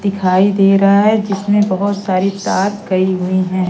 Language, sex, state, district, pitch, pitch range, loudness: Hindi, female, Madhya Pradesh, Katni, 195 Hz, 185-200 Hz, -14 LUFS